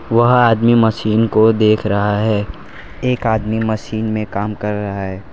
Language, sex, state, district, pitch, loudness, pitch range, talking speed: Hindi, male, Gujarat, Valsad, 110 Hz, -16 LUFS, 105-115 Hz, 170 wpm